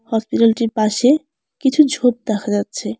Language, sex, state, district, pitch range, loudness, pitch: Bengali, female, West Bengal, Alipurduar, 215-265 Hz, -17 LUFS, 230 Hz